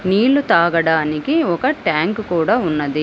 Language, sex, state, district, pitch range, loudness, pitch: Telugu, female, Telangana, Hyderabad, 160-220 Hz, -17 LUFS, 170 Hz